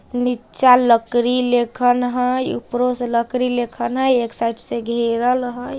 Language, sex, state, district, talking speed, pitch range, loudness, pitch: Bajjika, female, Bihar, Vaishali, 145 wpm, 235-250 Hz, -18 LUFS, 245 Hz